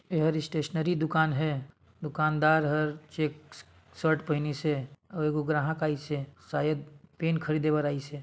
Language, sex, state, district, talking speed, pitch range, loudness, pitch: Chhattisgarhi, male, Chhattisgarh, Sarguja, 160 wpm, 150-160 Hz, -29 LUFS, 155 Hz